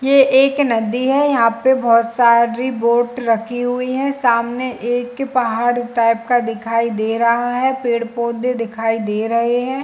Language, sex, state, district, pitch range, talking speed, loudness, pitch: Hindi, female, Chhattisgarh, Bilaspur, 230-255 Hz, 165 wpm, -17 LUFS, 240 Hz